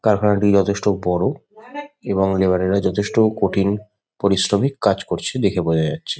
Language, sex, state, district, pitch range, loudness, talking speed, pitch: Bengali, male, West Bengal, Kolkata, 95-110 Hz, -19 LUFS, 135 wpm, 100 Hz